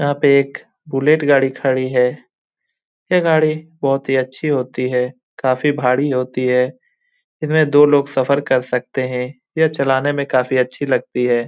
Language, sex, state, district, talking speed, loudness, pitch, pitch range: Hindi, male, Bihar, Lakhisarai, 195 wpm, -17 LUFS, 135 Hz, 130-150 Hz